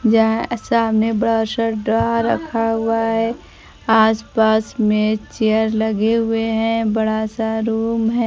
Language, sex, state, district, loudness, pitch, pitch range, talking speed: Hindi, female, Bihar, Kaimur, -18 LUFS, 225 Hz, 220-225 Hz, 140 wpm